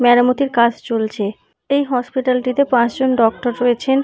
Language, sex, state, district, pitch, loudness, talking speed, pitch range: Bengali, female, West Bengal, Purulia, 245 Hz, -17 LUFS, 135 wpm, 235-260 Hz